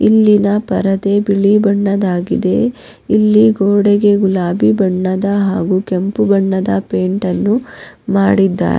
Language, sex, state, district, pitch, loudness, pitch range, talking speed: Kannada, female, Karnataka, Raichur, 200 Hz, -13 LUFS, 190-205 Hz, 100 wpm